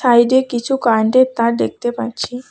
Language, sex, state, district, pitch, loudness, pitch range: Bengali, female, West Bengal, Cooch Behar, 240 Hz, -16 LUFS, 235-255 Hz